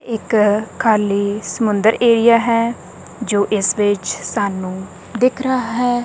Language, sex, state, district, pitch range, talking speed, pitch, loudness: Punjabi, female, Punjab, Kapurthala, 205-235 Hz, 120 wpm, 215 Hz, -17 LUFS